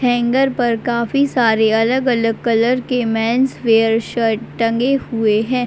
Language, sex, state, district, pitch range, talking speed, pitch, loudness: Hindi, female, Uttar Pradesh, Deoria, 225-250 Hz, 135 wpm, 235 Hz, -16 LUFS